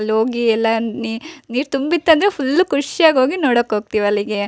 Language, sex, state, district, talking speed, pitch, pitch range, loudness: Kannada, female, Karnataka, Shimoga, 175 wpm, 240 Hz, 225-300 Hz, -17 LUFS